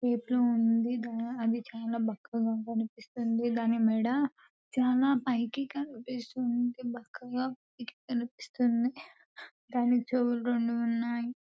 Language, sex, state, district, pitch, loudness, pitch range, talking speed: Telugu, female, Telangana, Nalgonda, 240 Hz, -31 LUFS, 230-250 Hz, 85 wpm